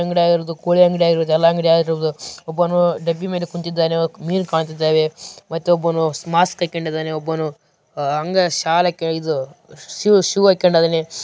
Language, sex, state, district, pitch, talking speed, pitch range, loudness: Kannada, male, Karnataka, Raichur, 165 Hz, 105 wpm, 160-175 Hz, -18 LUFS